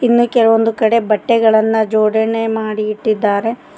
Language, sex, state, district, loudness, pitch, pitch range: Kannada, female, Karnataka, Koppal, -14 LUFS, 220 Hz, 215-225 Hz